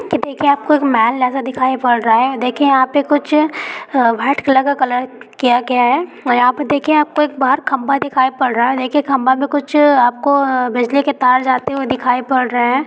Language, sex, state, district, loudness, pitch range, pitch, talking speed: Hindi, female, Bihar, Begusarai, -14 LUFS, 250-285 Hz, 265 Hz, 215 wpm